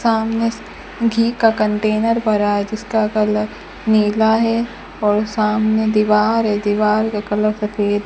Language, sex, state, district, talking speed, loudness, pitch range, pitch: Hindi, female, Rajasthan, Bikaner, 140 wpm, -17 LUFS, 210-225 Hz, 215 Hz